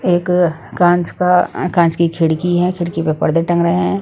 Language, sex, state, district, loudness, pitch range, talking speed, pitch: Hindi, female, Punjab, Pathankot, -15 LUFS, 165-180 Hz, 195 wpm, 175 Hz